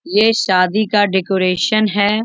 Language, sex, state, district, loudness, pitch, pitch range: Hindi, female, Bihar, Bhagalpur, -15 LUFS, 205 Hz, 185-215 Hz